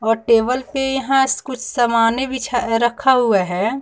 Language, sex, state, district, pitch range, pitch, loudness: Hindi, female, Bihar, West Champaran, 230-265 Hz, 245 Hz, -17 LUFS